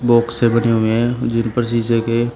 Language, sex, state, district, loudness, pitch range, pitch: Hindi, male, Uttar Pradesh, Shamli, -17 LUFS, 115-120 Hz, 115 Hz